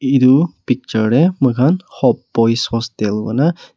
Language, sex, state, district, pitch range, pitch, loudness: Nagamese, male, Nagaland, Kohima, 115-140 Hz, 125 Hz, -15 LUFS